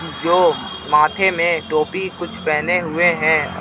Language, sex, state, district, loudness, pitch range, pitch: Hindi, male, Jharkhand, Ranchi, -17 LUFS, 155-180 Hz, 170 Hz